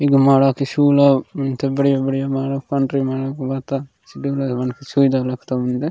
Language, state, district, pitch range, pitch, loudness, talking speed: Gondi, Chhattisgarh, Sukma, 135-140 Hz, 135 Hz, -18 LUFS, 185 wpm